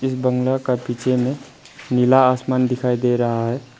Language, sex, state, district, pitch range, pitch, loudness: Hindi, male, Arunachal Pradesh, Papum Pare, 125-130 Hz, 125 Hz, -19 LUFS